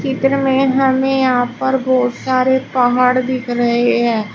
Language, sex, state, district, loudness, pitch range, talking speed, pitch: Hindi, female, Uttar Pradesh, Shamli, -15 LUFS, 245-265 Hz, 150 wpm, 255 Hz